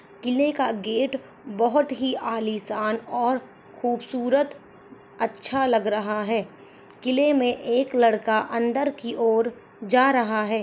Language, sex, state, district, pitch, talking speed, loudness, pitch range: Hindi, female, Rajasthan, Churu, 240 Hz, 125 wpm, -24 LUFS, 225-260 Hz